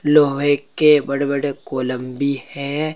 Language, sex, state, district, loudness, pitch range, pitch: Hindi, male, Uttar Pradesh, Saharanpur, -19 LUFS, 140-150 Hz, 140 Hz